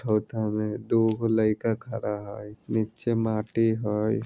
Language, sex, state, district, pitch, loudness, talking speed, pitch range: Maithili, male, Bihar, Vaishali, 110 Hz, -27 LUFS, 115 wpm, 105-115 Hz